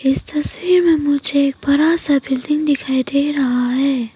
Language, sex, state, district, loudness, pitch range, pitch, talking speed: Hindi, female, Arunachal Pradesh, Papum Pare, -16 LUFS, 265-300 Hz, 280 Hz, 175 wpm